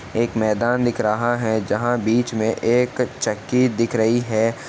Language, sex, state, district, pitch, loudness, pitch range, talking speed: Hindi, male, Uttar Pradesh, Etah, 115 Hz, -20 LUFS, 110-120 Hz, 165 wpm